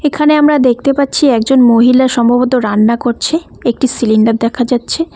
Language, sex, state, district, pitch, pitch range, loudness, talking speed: Bengali, female, West Bengal, Cooch Behar, 250 Hz, 235-280 Hz, -11 LUFS, 150 wpm